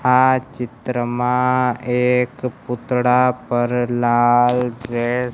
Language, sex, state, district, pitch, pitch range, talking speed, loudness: Gujarati, male, Gujarat, Gandhinagar, 125 Hz, 120-125 Hz, 90 wpm, -18 LUFS